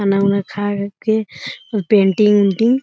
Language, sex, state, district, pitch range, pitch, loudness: Hindi, female, Bihar, Muzaffarpur, 200-215 Hz, 205 Hz, -16 LUFS